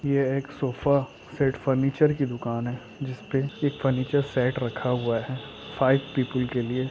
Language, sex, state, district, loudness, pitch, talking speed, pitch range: Hindi, male, Chhattisgarh, Raigarh, -26 LUFS, 130 Hz, 165 wpm, 125-140 Hz